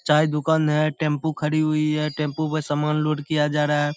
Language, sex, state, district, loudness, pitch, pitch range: Hindi, male, Bihar, Saharsa, -22 LUFS, 150 Hz, 150-155 Hz